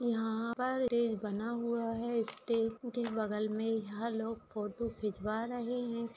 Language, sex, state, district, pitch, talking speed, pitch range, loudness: Hindi, female, Bihar, Saharsa, 230 Hz, 155 wpm, 220-235 Hz, -36 LUFS